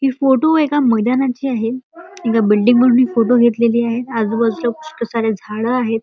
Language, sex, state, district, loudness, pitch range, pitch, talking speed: Marathi, male, Maharashtra, Chandrapur, -16 LUFS, 230-265 Hz, 240 Hz, 180 wpm